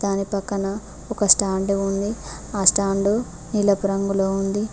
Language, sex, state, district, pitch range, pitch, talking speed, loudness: Telugu, female, Telangana, Mahabubabad, 195-205 Hz, 200 Hz, 125 wpm, -21 LUFS